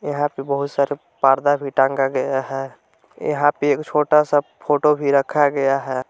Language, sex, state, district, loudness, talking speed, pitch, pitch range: Hindi, male, Jharkhand, Palamu, -19 LUFS, 185 wpm, 140 Hz, 135-145 Hz